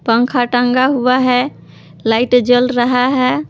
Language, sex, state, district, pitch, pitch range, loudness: Hindi, female, Jharkhand, Palamu, 250 Hz, 245-255 Hz, -14 LUFS